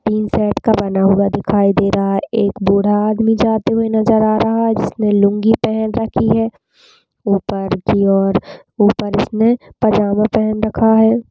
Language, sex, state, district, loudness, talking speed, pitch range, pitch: Hindi, female, Chhattisgarh, Balrampur, -15 LUFS, 170 wpm, 200-225 Hz, 215 Hz